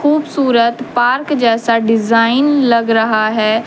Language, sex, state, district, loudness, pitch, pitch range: Hindi, female, Jharkhand, Deoghar, -13 LUFS, 235 Hz, 225-265 Hz